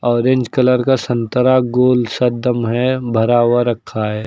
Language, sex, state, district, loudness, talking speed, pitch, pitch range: Hindi, male, Uttar Pradesh, Lucknow, -15 LUFS, 180 wpm, 120 Hz, 120-125 Hz